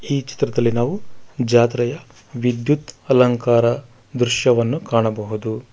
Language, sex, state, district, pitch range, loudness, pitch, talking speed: Kannada, male, Karnataka, Bangalore, 120-130 Hz, -19 LUFS, 120 Hz, 85 wpm